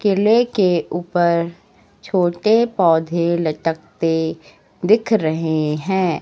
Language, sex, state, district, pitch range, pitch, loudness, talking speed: Hindi, female, Madhya Pradesh, Katni, 160-195 Hz, 170 Hz, -18 LUFS, 85 wpm